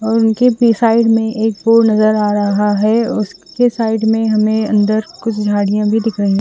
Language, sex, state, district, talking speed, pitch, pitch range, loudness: Hindi, female, Chandigarh, Chandigarh, 195 wpm, 220 Hz, 210-225 Hz, -14 LUFS